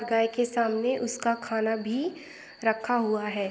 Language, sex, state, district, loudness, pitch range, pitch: Hindi, female, Bihar, Saran, -28 LUFS, 220-245 Hz, 235 Hz